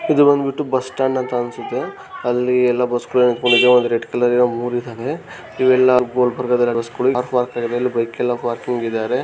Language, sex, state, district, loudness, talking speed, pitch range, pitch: Kannada, male, Karnataka, Gulbarga, -18 LUFS, 150 wpm, 120-125 Hz, 125 Hz